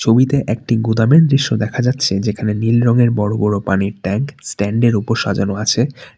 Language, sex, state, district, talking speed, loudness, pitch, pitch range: Bengali, male, West Bengal, Alipurduar, 175 wpm, -16 LUFS, 115 Hz, 105-125 Hz